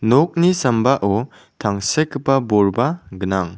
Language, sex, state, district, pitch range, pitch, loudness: Garo, male, Meghalaya, South Garo Hills, 100-140 Hz, 120 Hz, -18 LUFS